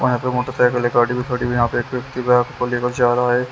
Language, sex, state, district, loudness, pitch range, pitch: Hindi, male, Haryana, Jhajjar, -19 LUFS, 120-125 Hz, 125 Hz